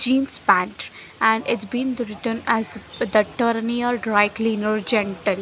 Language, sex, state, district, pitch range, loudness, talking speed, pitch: English, female, Punjab, Fazilka, 215-240 Hz, -21 LUFS, 110 wpm, 225 Hz